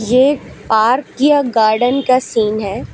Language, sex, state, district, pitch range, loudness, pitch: Hindi, female, Uttar Pradesh, Lucknow, 220-265 Hz, -14 LUFS, 245 Hz